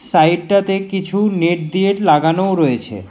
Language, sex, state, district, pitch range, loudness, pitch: Bengali, male, West Bengal, Alipurduar, 160-195 Hz, -15 LUFS, 185 Hz